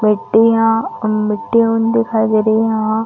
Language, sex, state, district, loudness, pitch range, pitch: Hindi, female, Chhattisgarh, Rajnandgaon, -14 LUFS, 215-225 Hz, 225 Hz